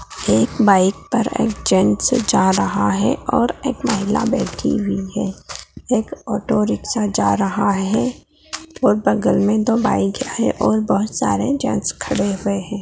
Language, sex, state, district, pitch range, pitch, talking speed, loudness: Hindi, female, Bihar, Jahanabad, 195-235 Hz, 210 Hz, 150 wpm, -18 LUFS